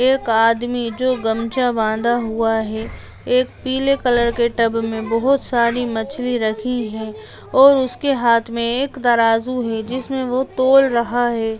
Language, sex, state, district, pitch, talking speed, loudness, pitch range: Hindi, female, Bihar, Lakhisarai, 240 Hz, 150 wpm, -18 LUFS, 225-255 Hz